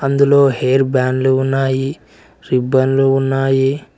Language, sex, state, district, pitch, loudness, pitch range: Telugu, male, Telangana, Mahabubabad, 135 Hz, -15 LUFS, 130-135 Hz